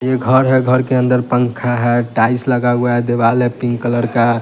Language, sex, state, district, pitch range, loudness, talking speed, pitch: Hindi, male, Bihar, West Champaran, 120-125 Hz, -15 LUFS, 230 wpm, 120 Hz